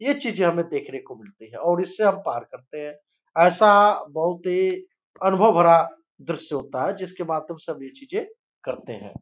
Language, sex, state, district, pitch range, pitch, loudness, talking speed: Hindi, male, Uttar Pradesh, Gorakhpur, 160-200 Hz, 175 Hz, -21 LUFS, 190 wpm